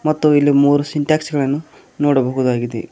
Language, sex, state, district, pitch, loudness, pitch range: Kannada, male, Karnataka, Koppal, 145 Hz, -16 LUFS, 130-150 Hz